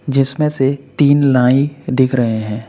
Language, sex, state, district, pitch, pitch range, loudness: Hindi, male, Uttar Pradesh, Saharanpur, 135 Hz, 125-140 Hz, -14 LUFS